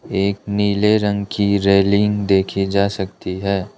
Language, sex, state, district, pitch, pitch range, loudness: Hindi, male, Arunachal Pradesh, Lower Dibang Valley, 100 Hz, 95-100 Hz, -18 LUFS